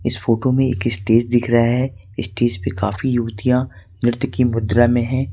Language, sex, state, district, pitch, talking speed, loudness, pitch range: Hindi, male, Jharkhand, Ranchi, 120 Hz, 190 wpm, -18 LUFS, 105-125 Hz